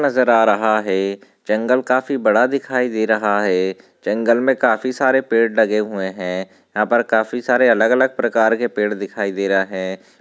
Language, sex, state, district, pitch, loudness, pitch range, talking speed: Hindi, male, Maharashtra, Nagpur, 110 Hz, -18 LUFS, 100-125 Hz, 190 wpm